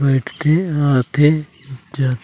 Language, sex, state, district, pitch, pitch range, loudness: Chhattisgarhi, male, Chhattisgarh, Raigarh, 145 Hz, 130-155 Hz, -17 LUFS